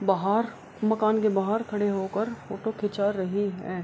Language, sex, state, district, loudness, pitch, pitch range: Hindi, female, Bihar, Kishanganj, -27 LUFS, 205 Hz, 195-215 Hz